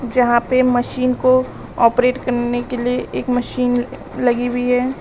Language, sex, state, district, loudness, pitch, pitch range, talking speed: Hindi, female, Uttar Pradesh, Lalitpur, -17 LUFS, 250 Hz, 245-255 Hz, 155 wpm